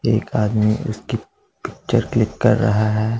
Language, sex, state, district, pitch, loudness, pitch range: Hindi, male, Punjab, Pathankot, 110 Hz, -19 LUFS, 110-115 Hz